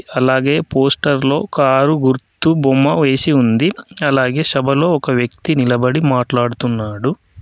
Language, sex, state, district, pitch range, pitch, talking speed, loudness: Telugu, male, Telangana, Adilabad, 130-150 Hz, 135 Hz, 105 wpm, -15 LUFS